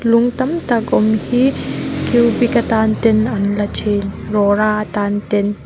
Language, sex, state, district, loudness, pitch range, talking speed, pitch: Mizo, female, Mizoram, Aizawl, -16 LUFS, 205-240 Hz, 150 wpm, 220 Hz